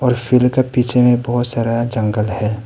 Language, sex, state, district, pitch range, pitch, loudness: Hindi, male, Arunachal Pradesh, Papum Pare, 110-125 Hz, 120 Hz, -16 LUFS